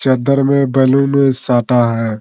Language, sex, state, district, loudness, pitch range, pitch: Hindi, male, Bihar, Muzaffarpur, -13 LUFS, 120-140 Hz, 130 Hz